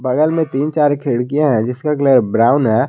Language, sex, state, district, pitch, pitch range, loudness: Hindi, male, Jharkhand, Garhwa, 140 Hz, 125-150 Hz, -15 LUFS